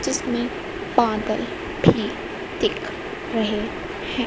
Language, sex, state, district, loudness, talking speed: Hindi, female, Madhya Pradesh, Dhar, -24 LUFS, 85 wpm